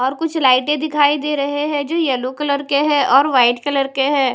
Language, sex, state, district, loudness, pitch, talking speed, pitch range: Hindi, female, Odisha, Nuapada, -16 LUFS, 285 Hz, 235 wpm, 270-295 Hz